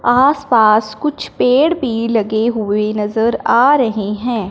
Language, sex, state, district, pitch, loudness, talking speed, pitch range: Hindi, female, Punjab, Fazilka, 230 Hz, -14 LUFS, 135 wpm, 215-250 Hz